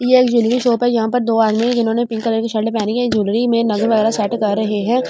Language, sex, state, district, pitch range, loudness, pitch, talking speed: Hindi, female, Delhi, New Delhi, 220-240 Hz, -16 LUFS, 230 Hz, 330 wpm